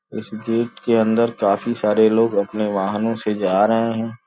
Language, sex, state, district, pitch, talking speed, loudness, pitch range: Hindi, male, Uttar Pradesh, Gorakhpur, 110 Hz, 180 wpm, -19 LUFS, 105-115 Hz